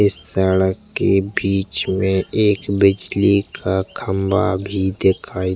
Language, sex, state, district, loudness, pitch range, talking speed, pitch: Hindi, male, Chhattisgarh, Jashpur, -18 LUFS, 95-100 Hz, 130 wpm, 95 Hz